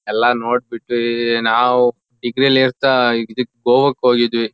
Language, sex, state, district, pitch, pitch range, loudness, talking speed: Kannada, male, Karnataka, Shimoga, 120 Hz, 120-125 Hz, -16 LUFS, 130 wpm